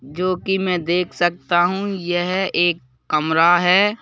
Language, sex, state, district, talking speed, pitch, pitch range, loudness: Hindi, male, Madhya Pradesh, Bhopal, 150 wpm, 175 Hz, 170-185 Hz, -18 LUFS